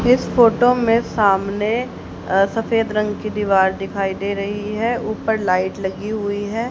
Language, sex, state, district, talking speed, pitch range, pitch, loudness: Hindi, female, Haryana, Rohtak, 160 wpm, 195-225 Hz, 210 Hz, -19 LUFS